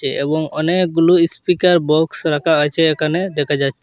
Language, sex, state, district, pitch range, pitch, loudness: Bengali, male, Assam, Hailakandi, 150-175 Hz, 160 Hz, -16 LUFS